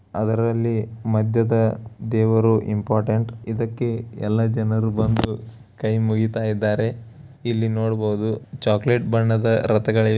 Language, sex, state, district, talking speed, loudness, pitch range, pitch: Kannada, male, Karnataka, Bellary, 95 wpm, -21 LUFS, 110-115 Hz, 110 Hz